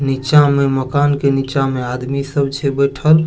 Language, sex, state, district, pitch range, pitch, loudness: Maithili, male, Bihar, Supaul, 135-145 Hz, 140 Hz, -16 LUFS